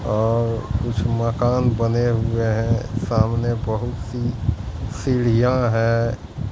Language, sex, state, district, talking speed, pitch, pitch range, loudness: Hindi, male, Bihar, Katihar, 100 wpm, 115 Hz, 110-120 Hz, -21 LUFS